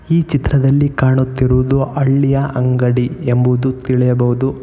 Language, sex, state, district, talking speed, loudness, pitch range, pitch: Kannada, male, Karnataka, Bangalore, 90 wpm, -15 LUFS, 125-135 Hz, 130 Hz